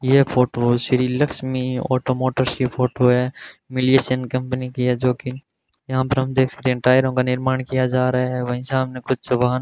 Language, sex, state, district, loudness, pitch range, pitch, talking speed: Hindi, male, Rajasthan, Bikaner, -20 LUFS, 125-130 Hz, 130 Hz, 195 wpm